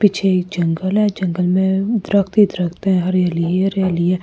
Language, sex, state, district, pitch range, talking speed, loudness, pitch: Hindi, female, Delhi, New Delhi, 180-195 Hz, 200 wpm, -17 LUFS, 185 Hz